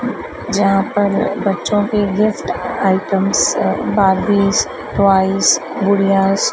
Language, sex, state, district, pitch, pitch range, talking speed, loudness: Hindi, female, Madhya Pradesh, Dhar, 200 Hz, 195-205 Hz, 85 wpm, -15 LUFS